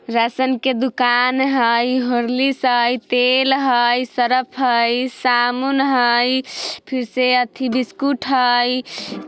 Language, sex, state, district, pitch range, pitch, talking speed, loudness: Bajjika, female, Bihar, Vaishali, 245-260 Hz, 250 Hz, 110 wpm, -17 LUFS